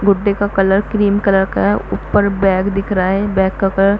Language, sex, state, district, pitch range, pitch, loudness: Hindi, female, Chhattisgarh, Bastar, 195-205 Hz, 195 Hz, -15 LUFS